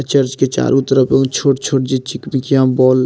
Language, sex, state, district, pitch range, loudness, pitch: Maithili, male, Bihar, Madhepura, 130-135 Hz, -15 LUFS, 135 Hz